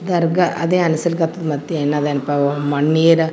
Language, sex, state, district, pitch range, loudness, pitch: Kannada, female, Karnataka, Gulbarga, 145-170 Hz, -17 LUFS, 160 Hz